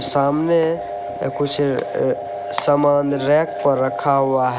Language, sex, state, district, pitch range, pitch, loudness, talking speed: Hindi, male, Uttar Pradesh, Lalitpur, 100-145 Hz, 135 Hz, -19 LUFS, 115 wpm